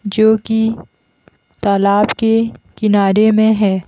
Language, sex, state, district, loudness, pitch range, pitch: Hindi, female, Haryana, Jhajjar, -14 LUFS, 200-220 Hz, 215 Hz